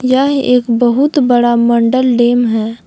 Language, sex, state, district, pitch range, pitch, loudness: Hindi, female, Jharkhand, Palamu, 235-255 Hz, 245 Hz, -11 LUFS